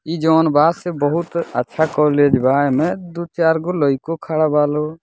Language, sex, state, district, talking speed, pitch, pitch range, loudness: Bhojpuri, male, Bihar, Muzaffarpur, 180 wpm, 160 Hz, 150-165 Hz, -17 LUFS